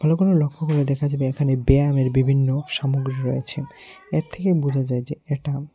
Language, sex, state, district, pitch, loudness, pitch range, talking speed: Bengali, male, Tripura, West Tripura, 140 Hz, -22 LUFS, 135-150 Hz, 175 wpm